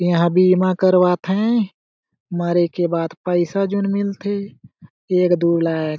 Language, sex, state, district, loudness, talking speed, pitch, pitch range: Sadri, male, Chhattisgarh, Jashpur, -18 LUFS, 140 wpm, 180 Hz, 170-195 Hz